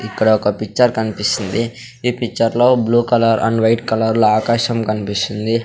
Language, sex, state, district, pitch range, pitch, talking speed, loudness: Telugu, male, Andhra Pradesh, Sri Satya Sai, 110-120 Hz, 115 Hz, 160 wpm, -16 LUFS